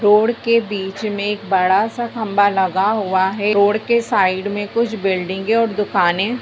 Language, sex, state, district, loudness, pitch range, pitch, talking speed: Hindi, female, Bihar, Bhagalpur, -17 LUFS, 190-225 Hz, 205 Hz, 180 wpm